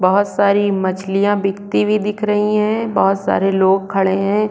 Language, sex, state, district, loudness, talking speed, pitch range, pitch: Hindi, female, Chhattisgarh, Korba, -16 LUFS, 175 wpm, 195-210 Hz, 200 Hz